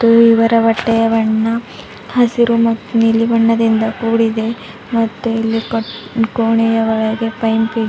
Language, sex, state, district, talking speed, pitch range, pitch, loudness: Kannada, female, Karnataka, Bidar, 105 wpm, 225-230 Hz, 225 Hz, -14 LUFS